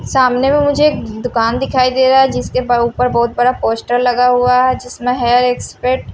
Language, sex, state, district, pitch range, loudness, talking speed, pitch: Hindi, female, Maharashtra, Gondia, 245-255 Hz, -14 LUFS, 195 wpm, 250 Hz